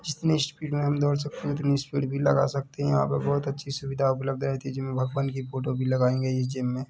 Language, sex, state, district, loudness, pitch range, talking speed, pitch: Hindi, male, Chhattisgarh, Bilaspur, -27 LUFS, 130-140 Hz, 245 wpm, 135 Hz